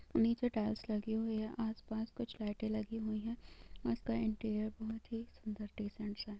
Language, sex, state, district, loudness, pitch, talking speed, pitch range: Hindi, female, Bihar, Gopalganj, -40 LUFS, 220 Hz, 185 wpm, 215-225 Hz